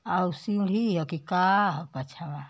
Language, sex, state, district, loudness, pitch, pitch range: Bhojpuri, male, Uttar Pradesh, Ghazipur, -27 LUFS, 175 Hz, 155-195 Hz